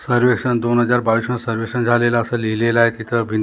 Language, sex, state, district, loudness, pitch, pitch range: Marathi, male, Maharashtra, Gondia, -18 LUFS, 120 Hz, 115-120 Hz